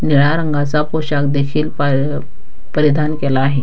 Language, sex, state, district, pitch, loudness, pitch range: Marathi, female, Maharashtra, Dhule, 145 Hz, -16 LUFS, 140-150 Hz